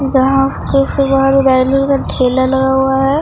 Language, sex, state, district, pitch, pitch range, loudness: Hindi, male, Bihar, Katihar, 270 Hz, 265-275 Hz, -12 LUFS